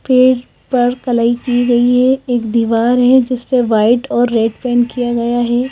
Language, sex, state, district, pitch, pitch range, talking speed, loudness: Hindi, female, Madhya Pradesh, Bhopal, 245 Hz, 240-250 Hz, 190 wpm, -13 LUFS